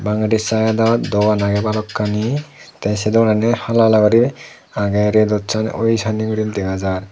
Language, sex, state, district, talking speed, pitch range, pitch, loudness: Chakma, male, Tripura, Dhalai, 170 wpm, 105-110 Hz, 110 Hz, -17 LUFS